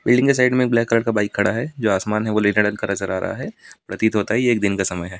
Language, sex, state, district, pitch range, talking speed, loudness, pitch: Hindi, male, Delhi, New Delhi, 105-120 Hz, 345 wpm, -19 LUFS, 110 Hz